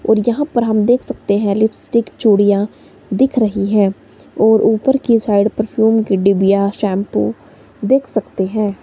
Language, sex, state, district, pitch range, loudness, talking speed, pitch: Hindi, female, Himachal Pradesh, Shimla, 200-230 Hz, -15 LUFS, 155 wpm, 215 Hz